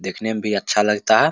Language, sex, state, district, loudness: Hindi, male, Bihar, Begusarai, -19 LUFS